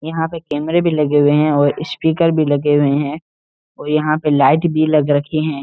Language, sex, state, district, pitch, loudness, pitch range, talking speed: Hindi, male, Uttarakhand, Uttarkashi, 150 Hz, -15 LUFS, 145-160 Hz, 225 wpm